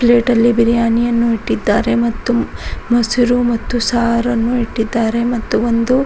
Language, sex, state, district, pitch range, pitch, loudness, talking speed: Kannada, female, Karnataka, Raichur, 230-240 Hz, 235 Hz, -15 LUFS, 110 wpm